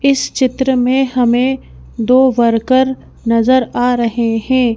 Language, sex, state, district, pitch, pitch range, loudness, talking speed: Hindi, female, Madhya Pradesh, Bhopal, 250 Hz, 235-260 Hz, -14 LUFS, 125 wpm